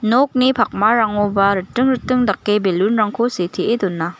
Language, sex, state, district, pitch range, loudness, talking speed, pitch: Garo, female, Meghalaya, West Garo Hills, 195-250 Hz, -17 LUFS, 115 wpm, 210 Hz